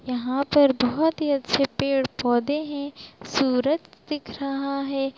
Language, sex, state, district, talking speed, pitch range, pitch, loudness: Hindi, female, Bihar, Sitamarhi, 125 wpm, 260-290 Hz, 275 Hz, -24 LUFS